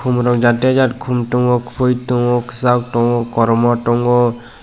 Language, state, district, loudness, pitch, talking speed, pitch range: Kokborok, Tripura, West Tripura, -15 LUFS, 120 Hz, 140 wpm, 120-125 Hz